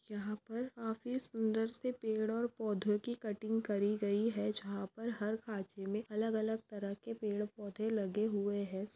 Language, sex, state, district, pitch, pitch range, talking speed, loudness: Hindi, female, Maharashtra, Aurangabad, 215 Hz, 205-225 Hz, 160 wpm, -38 LUFS